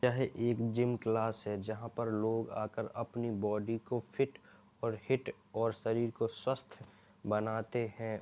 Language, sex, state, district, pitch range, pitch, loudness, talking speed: Hindi, male, Uttar Pradesh, Jalaun, 110-120 Hz, 115 Hz, -36 LUFS, 155 wpm